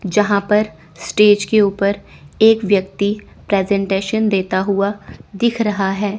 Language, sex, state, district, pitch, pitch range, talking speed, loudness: Hindi, female, Chandigarh, Chandigarh, 200 Hz, 195-210 Hz, 125 wpm, -16 LUFS